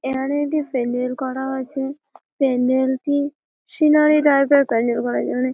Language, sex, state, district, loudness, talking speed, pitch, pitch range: Bengali, female, West Bengal, Malda, -19 LUFS, 150 wpm, 270 Hz, 255-285 Hz